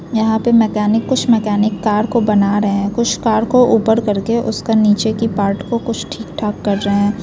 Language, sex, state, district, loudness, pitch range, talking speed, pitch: Hindi, female, Bihar, Muzaffarpur, -15 LUFS, 205-230 Hz, 205 wpm, 220 Hz